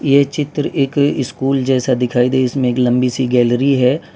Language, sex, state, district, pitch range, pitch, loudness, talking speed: Hindi, male, Gujarat, Valsad, 125-140 Hz, 130 Hz, -15 LUFS, 190 wpm